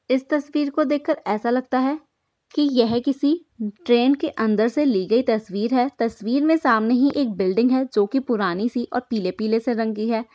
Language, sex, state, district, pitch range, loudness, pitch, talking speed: Hindi, female, Uttar Pradesh, Hamirpur, 225-280 Hz, -21 LUFS, 245 Hz, 205 wpm